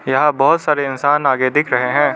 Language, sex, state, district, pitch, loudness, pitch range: Hindi, male, Arunachal Pradesh, Lower Dibang Valley, 145 Hz, -15 LUFS, 135-150 Hz